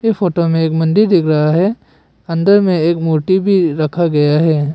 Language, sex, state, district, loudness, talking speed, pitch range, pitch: Hindi, male, Arunachal Pradesh, Papum Pare, -13 LUFS, 200 wpm, 155-185 Hz, 165 Hz